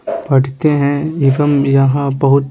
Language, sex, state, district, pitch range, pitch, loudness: Hindi, male, Bihar, Patna, 135-145 Hz, 140 Hz, -13 LUFS